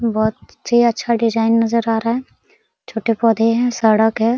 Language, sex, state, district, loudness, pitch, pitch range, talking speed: Hindi, female, Bihar, Araria, -17 LUFS, 230 Hz, 225-235 Hz, 180 wpm